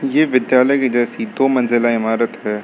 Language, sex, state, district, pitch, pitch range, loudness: Hindi, male, Uttar Pradesh, Lucknow, 120 Hz, 115-130 Hz, -16 LUFS